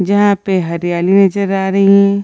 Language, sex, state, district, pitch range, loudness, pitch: Hindi, female, Bihar, Gaya, 185-200 Hz, -12 LUFS, 195 Hz